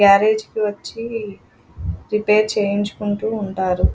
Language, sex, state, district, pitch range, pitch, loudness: Telugu, female, Andhra Pradesh, Krishna, 195-215 Hz, 205 Hz, -20 LUFS